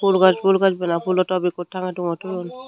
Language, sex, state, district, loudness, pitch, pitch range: Chakma, female, Tripura, Unakoti, -20 LUFS, 185 Hz, 175-190 Hz